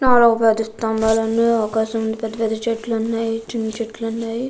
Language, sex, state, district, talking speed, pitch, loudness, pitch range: Telugu, female, Andhra Pradesh, Krishna, 160 wpm, 225 Hz, -20 LUFS, 220-230 Hz